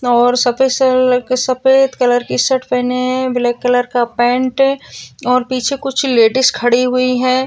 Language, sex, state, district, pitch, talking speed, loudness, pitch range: Hindi, female, Maharashtra, Sindhudurg, 255 Hz, 175 wpm, -14 LUFS, 245-260 Hz